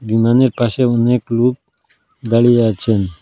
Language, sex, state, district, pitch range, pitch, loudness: Bengali, male, Assam, Hailakandi, 115-125 Hz, 115 Hz, -14 LUFS